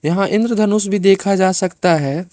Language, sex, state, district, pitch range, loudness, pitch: Hindi, male, Arunachal Pradesh, Lower Dibang Valley, 175-205 Hz, -15 LUFS, 195 Hz